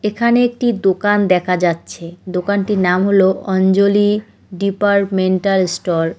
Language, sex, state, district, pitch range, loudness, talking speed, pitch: Bengali, female, West Bengal, Cooch Behar, 185-205 Hz, -15 LUFS, 115 wpm, 195 Hz